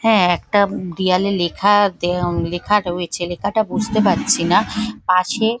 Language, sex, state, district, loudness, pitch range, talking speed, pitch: Bengali, female, West Bengal, Paschim Medinipur, -18 LUFS, 175-215 Hz, 140 wpm, 195 Hz